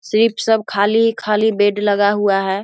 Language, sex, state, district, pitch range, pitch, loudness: Hindi, female, Bihar, Saharsa, 205-220 Hz, 210 Hz, -16 LUFS